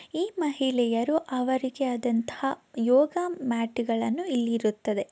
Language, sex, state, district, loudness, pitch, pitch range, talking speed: Kannada, female, Karnataka, Belgaum, -27 LUFS, 255 Hz, 230-285 Hz, 80 wpm